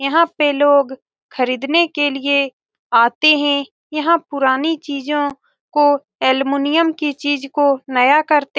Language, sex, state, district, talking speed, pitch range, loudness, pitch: Hindi, female, Bihar, Saran, 135 wpm, 275-300 Hz, -16 LUFS, 285 Hz